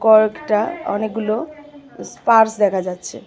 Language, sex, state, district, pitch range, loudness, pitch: Bengali, female, Tripura, West Tripura, 210-230 Hz, -18 LUFS, 220 Hz